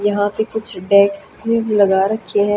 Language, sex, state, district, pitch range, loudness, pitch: Hindi, female, Haryana, Jhajjar, 200-220 Hz, -16 LUFS, 205 Hz